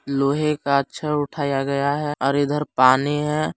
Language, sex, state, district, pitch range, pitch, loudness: Hindi, male, Jharkhand, Palamu, 140-150 Hz, 145 Hz, -21 LUFS